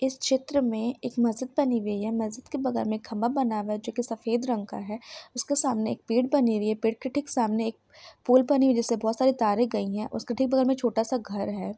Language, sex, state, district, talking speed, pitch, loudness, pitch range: Hindi, female, Jharkhand, Sahebganj, 265 wpm, 235 Hz, -27 LUFS, 220-265 Hz